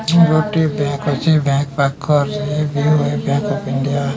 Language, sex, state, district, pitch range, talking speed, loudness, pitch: Odia, male, Odisha, Nuapada, 140-155 Hz, 115 wpm, -17 LUFS, 145 Hz